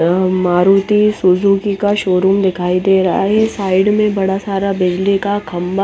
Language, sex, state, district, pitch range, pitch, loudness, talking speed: Hindi, female, Chandigarh, Chandigarh, 185-200 Hz, 195 Hz, -14 LUFS, 175 wpm